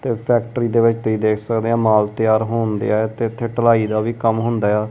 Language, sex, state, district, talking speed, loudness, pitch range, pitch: Punjabi, male, Punjab, Kapurthala, 245 wpm, -18 LUFS, 110-115 Hz, 115 Hz